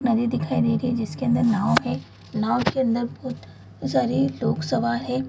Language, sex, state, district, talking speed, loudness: Hindi, female, Bihar, Sitamarhi, 205 wpm, -23 LUFS